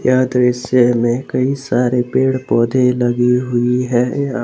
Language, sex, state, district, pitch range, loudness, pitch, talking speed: Hindi, male, Jharkhand, Garhwa, 120-130 Hz, -15 LUFS, 125 Hz, 135 wpm